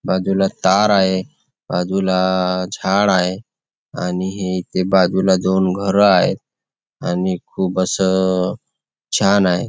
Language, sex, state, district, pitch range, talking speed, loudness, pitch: Marathi, male, Maharashtra, Chandrapur, 90-95 Hz, 110 wpm, -17 LUFS, 95 Hz